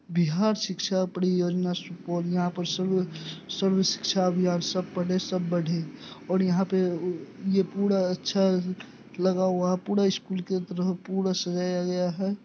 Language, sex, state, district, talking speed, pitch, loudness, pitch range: Hindi, male, Bihar, Supaul, 145 wpm, 185 Hz, -27 LUFS, 180-190 Hz